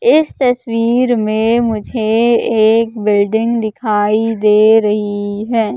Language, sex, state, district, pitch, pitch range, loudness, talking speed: Hindi, female, Madhya Pradesh, Katni, 225 Hz, 215-235 Hz, -13 LUFS, 105 wpm